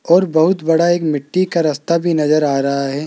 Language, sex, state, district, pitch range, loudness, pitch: Hindi, male, Rajasthan, Jaipur, 145-170 Hz, -15 LUFS, 160 Hz